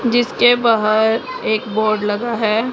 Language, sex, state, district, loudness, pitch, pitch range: Hindi, female, Punjab, Pathankot, -16 LUFS, 225 Hz, 215-240 Hz